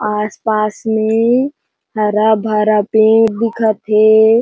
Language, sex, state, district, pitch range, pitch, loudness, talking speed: Chhattisgarhi, female, Chhattisgarh, Jashpur, 215-225 Hz, 220 Hz, -13 LUFS, 80 wpm